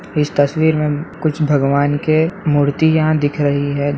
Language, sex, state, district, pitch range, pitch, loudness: Hindi, male, Bihar, Samastipur, 145-155 Hz, 150 Hz, -16 LUFS